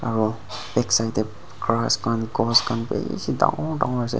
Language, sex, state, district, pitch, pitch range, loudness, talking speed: Nagamese, male, Nagaland, Dimapur, 115 Hz, 110-120 Hz, -23 LUFS, 155 wpm